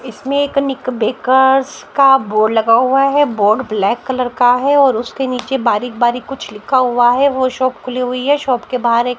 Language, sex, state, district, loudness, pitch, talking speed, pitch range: Hindi, male, Delhi, New Delhi, -14 LUFS, 255 Hz, 210 wpm, 240-270 Hz